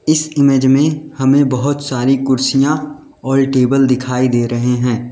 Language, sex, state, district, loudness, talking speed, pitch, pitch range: Hindi, male, Uttar Pradesh, Lalitpur, -14 LUFS, 150 wpm, 135 Hz, 125-145 Hz